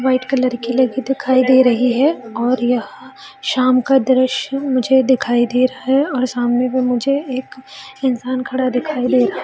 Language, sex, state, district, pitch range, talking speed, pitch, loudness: Hindi, female, Bihar, Jamui, 250-265 Hz, 180 wpm, 255 Hz, -16 LUFS